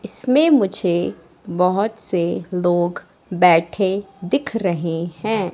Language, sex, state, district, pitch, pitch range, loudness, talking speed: Hindi, female, Madhya Pradesh, Katni, 180 Hz, 175-215 Hz, -19 LUFS, 95 wpm